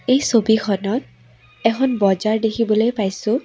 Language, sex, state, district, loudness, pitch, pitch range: Assamese, female, Assam, Sonitpur, -19 LUFS, 220 Hz, 200-235 Hz